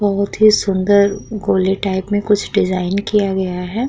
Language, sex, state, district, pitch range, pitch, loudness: Hindi, female, Uttar Pradesh, Muzaffarnagar, 190-205 Hz, 200 Hz, -16 LUFS